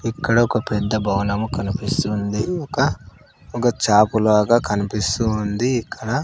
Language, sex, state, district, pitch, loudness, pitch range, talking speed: Telugu, male, Andhra Pradesh, Sri Satya Sai, 110 Hz, -20 LUFS, 105-120 Hz, 115 wpm